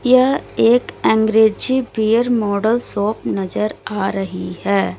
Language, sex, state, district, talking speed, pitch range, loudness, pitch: Hindi, female, Uttar Pradesh, Lalitpur, 120 wpm, 200-240 Hz, -17 LUFS, 220 Hz